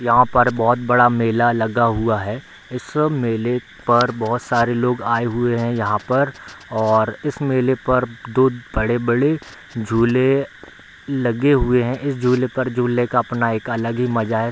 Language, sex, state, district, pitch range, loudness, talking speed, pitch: Hindi, male, Bihar, Bhagalpur, 115-125 Hz, -19 LUFS, 165 wpm, 120 Hz